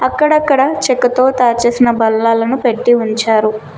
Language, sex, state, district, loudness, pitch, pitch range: Telugu, female, Telangana, Mahabubabad, -12 LUFS, 240 Hz, 225-255 Hz